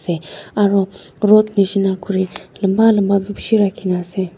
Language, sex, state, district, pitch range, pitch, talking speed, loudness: Nagamese, female, Nagaland, Dimapur, 185-205 Hz, 195 Hz, 150 wpm, -17 LUFS